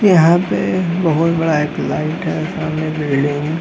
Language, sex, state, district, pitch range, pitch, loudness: Hindi, male, Bihar, Gaya, 155-170 Hz, 160 Hz, -16 LUFS